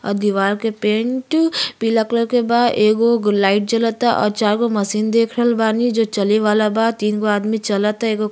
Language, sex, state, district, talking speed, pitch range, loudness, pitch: Bhojpuri, female, Uttar Pradesh, Gorakhpur, 195 wpm, 210-230 Hz, -17 LUFS, 220 Hz